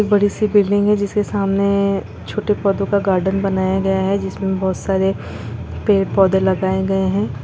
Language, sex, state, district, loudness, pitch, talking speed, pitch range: Hindi, female, Chhattisgarh, Bilaspur, -18 LUFS, 195 Hz, 175 wpm, 190-200 Hz